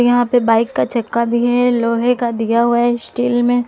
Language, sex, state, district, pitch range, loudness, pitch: Hindi, female, Jharkhand, Palamu, 235-245 Hz, -15 LUFS, 240 Hz